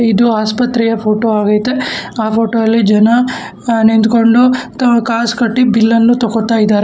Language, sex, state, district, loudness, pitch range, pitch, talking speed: Kannada, male, Karnataka, Bangalore, -12 LUFS, 220-235 Hz, 230 Hz, 150 wpm